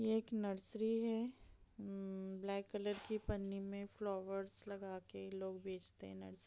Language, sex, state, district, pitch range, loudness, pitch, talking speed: Hindi, female, Bihar, East Champaran, 190-210 Hz, -42 LUFS, 195 Hz, 160 wpm